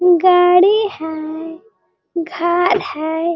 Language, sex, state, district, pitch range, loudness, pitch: Hindi, female, Jharkhand, Sahebganj, 325-375 Hz, -15 LUFS, 355 Hz